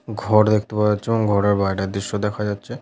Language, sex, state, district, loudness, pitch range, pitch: Bengali, male, West Bengal, Paschim Medinipur, -20 LUFS, 100-110 Hz, 105 Hz